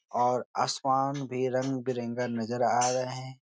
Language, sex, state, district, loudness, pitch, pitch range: Hindi, male, Uttar Pradesh, Etah, -29 LUFS, 130 Hz, 125-130 Hz